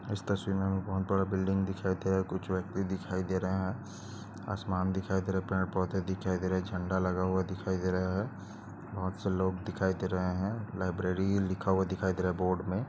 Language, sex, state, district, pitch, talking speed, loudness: Hindi, male, Maharashtra, Chandrapur, 95 Hz, 230 wpm, -33 LUFS